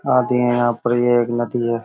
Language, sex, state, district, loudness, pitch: Hindi, male, Uttar Pradesh, Hamirpur, -18 LUFS, 120 Hz